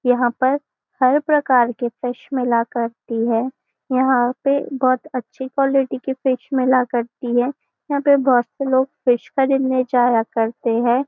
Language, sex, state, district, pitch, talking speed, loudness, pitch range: Hindi, female, Maharashtra, Nagpur, 255 Hz, 155 wpm, -19 LUFS, 240-270 Hz